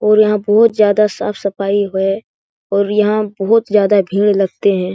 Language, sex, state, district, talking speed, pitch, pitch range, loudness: Hindi, female, Bihar, Jahanabad, 170 wpm, 205 Hz, 200-210 Hz, -14 LUFS